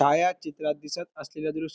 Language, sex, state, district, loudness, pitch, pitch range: Marathi, male, Maharashtra, Pune, -29 LUFS, 155 Hz, 150-175 Hz